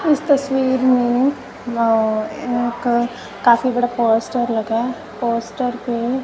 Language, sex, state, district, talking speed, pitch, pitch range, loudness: Hindi, female, Punjab, Kapurthala, 115 wpm, 245 Hz, 235-255 Hz, -18 LUFS